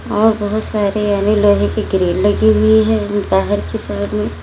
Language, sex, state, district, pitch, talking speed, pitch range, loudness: Hindi, female, Uttar Pradesh, Lalitpur, 205 Hz, 190 wpm, 190-215 Hz, -15 LUFS